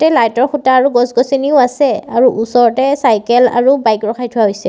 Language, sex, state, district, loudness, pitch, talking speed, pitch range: Assamese, female, Assam, Sonitpur, -12 LUFS, 245 Hz, 205 wpm, 230-270 Hz